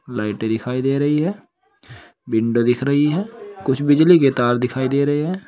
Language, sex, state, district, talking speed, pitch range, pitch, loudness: Hindi, male, Uttar Pradesh, Saharanpur, 185 wpm, 125-165 Hz, 140 Hz, -18 LUFS